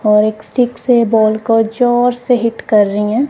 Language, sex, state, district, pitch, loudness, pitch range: Hindi, female, Punjab, Kapurthala, 225 Hz, -13 LUFS, 215-245 Hz